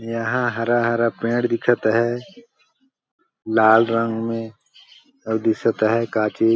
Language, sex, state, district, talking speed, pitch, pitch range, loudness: Hindi, male, Chhattisgarh, Balrampur, 130 wpm, 115 Hz, 115-120 Hz, -20 LUFS